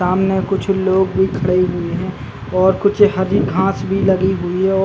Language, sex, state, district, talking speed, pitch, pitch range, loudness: Hindi, male, Uttar Pradesh, Jalaun, 175 wpm, 190 Hz, 180-190 Hz, -16 LUFS